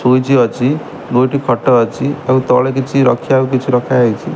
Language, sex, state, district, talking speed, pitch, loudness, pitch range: Odia, male, Odisha, Malkangiri, 165 wpm, 130 Hz, -13 LUFS, 125-135 Hz